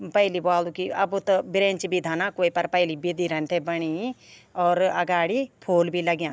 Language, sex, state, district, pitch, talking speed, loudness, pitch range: Garhwali, female, Uttarakhand, Tehri Garhwal, 175 Hz, 180 wpm, -24 LUFS, 175-190 Hz